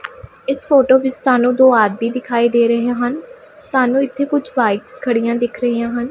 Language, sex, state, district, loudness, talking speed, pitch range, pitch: Punjabi, female, Punjab, Pathankot, -16 LUFS, 175 wpm, 235-265 Hz, 250 Hz